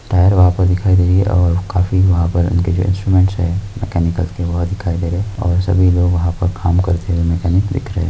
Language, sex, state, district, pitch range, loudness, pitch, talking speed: Hindi, male, Rajasthan, Nagaur, 85-95 Hz, -15 LUFS, 90 Hz, 230 wpm